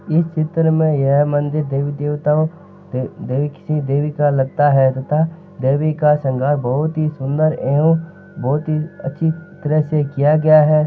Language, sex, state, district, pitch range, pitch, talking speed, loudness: Marwari, male, Rajasthan, Nagaur, 145-155 Hz, 150 Hz, 150 wpm, -17 LUFS